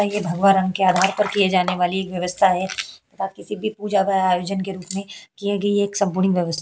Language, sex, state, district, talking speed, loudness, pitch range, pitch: Hindi, female, Uttar Pradesh, Hamirpur, 255 wpm, -21 LUFS, 185-200 Hz, 195 Hz